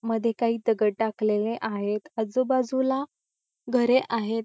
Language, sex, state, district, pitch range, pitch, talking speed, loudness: Marathi, female, Maharashtra, Pune, 220-255 Hz, 230 Hz, 110 wpm, -26 LUFS